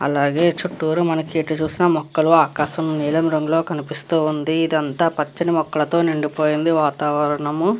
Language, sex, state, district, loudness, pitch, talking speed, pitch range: Telugu, female, Andhra Pradesh, Krishna, -19 LUFS, 155 Hz, 130 wpm, 150-165 Hz